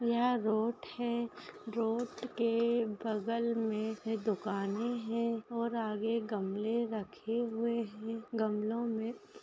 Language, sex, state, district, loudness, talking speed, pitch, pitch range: Hindi, female, Uttarakhand, Uttarkashi, -35 LUFS, 110 wpm, 230 Hz, 220-235 Hz